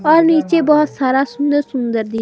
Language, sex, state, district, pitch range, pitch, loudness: Hindi, female, Himachal Pradesh, Shimla, 260-305 Hz, 290 Hz, -15 LUFS